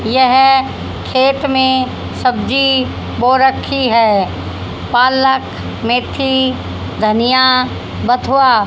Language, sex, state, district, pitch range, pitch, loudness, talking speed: Hindi, female, Haryana, Charkhi Dadri, 245-265 Hz, 260 Hz, -13 LUFS, 75 wpm